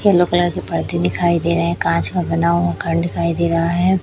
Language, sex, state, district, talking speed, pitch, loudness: Hindi, male, Chhattisgarh, Raipur, 240 wpm, 165 Hz, -17 LUFS